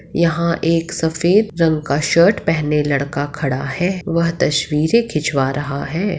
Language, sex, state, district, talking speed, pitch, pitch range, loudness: Hindi, female, Bihar, Madhepura, 145 wpm, 160 Hz, 145-170 Hz, -17 LUFS